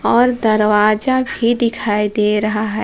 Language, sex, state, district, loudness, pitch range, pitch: Hindi, female, Jharkhand, Palamu, -15 LUFS, 210-235 Hz, 215 Hz